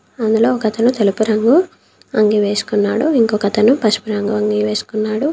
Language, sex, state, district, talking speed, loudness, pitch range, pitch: Telugu, female, Telangana, Komaram Bheem, 135 wpm, -15 LUFS, 210-230 Hz, 215 Hz